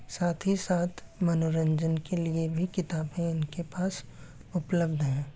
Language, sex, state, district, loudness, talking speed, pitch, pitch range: Hindi, male, Uttar Pradesh, Etah, -30 LUFS, 135 wpm, 165 Hz, 160-175 Hz